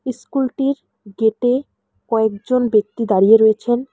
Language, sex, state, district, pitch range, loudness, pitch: Bengali, female, West Bengal, Alipurduar, 220-255 Hz, -17 LUFS, 235 Hz